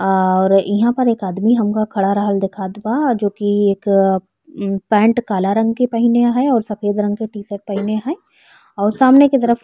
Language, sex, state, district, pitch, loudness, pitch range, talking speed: Bhojpuri, female, Uttar Pradesh, Ghazipur, 210 Hz, -16 LUFS, 200-235 Hz, 200 wpm